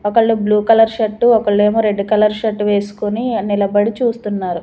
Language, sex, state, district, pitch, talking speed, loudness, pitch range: Telugu, female, Andhra Pradesh, Manyam, 210 Hz, 140 wpm, -15 LUFS, 205-225 Hz